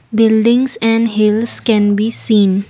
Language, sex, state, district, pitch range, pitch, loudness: English, female, Assam, Kamrup Metropolitan, 210-230 Hz, 220 Hz, -13 LUFS